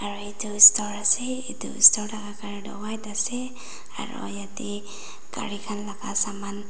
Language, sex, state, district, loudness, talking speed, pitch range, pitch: Nagamese, female, Nagaland, Dimapur, -20 LUFS, 150 wpm, 205-215 Hz, 210 Hz